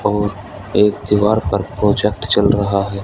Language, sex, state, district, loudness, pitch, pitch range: Hindi, male, Haryana, Rohtak, -16 LUFS, 105 Hz, 100-105 Hz